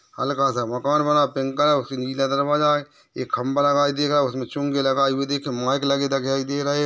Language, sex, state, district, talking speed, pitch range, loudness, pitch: Hindi, male, Maharashtra, Nagpur, 235 wpm, 135-145 Hz, -22 LUFS, 140 Hz